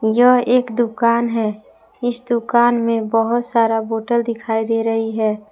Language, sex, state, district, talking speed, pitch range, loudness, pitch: Hindi, female, Jharkhand, Palamu, 150 wpm, 225-240 Hz, -18 LUFS, 230 Hz